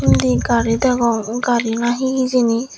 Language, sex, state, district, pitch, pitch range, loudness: Chakma, female, Tripura, Dhalai, 235 Hz, 225-250 Hz, -17 LUFS